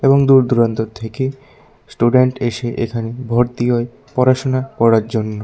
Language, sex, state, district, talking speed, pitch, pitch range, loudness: Bengali, male, Tripura, West Tripura, 130 wpm, 120 Hz, 115-130 Hz, -16 LUFS